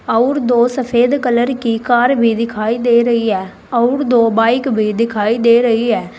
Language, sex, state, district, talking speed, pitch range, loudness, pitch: Hindi, female, Uttar Pradesh, Saharanpur, 185 wpm, 225-245 Hz, -14 LUFS, 235 Hz